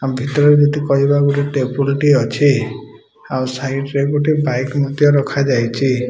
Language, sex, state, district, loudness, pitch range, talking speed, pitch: Odia, male, Odisha, Malkangiri, -16 LUFS, 130-145 Hz, 165 wpm, 140 Hz